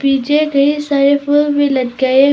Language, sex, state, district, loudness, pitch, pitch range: Hindi, female, Arunachal Pradesh, Papum Pare, -13 LUFS, 280 Hz, 270-290 Hz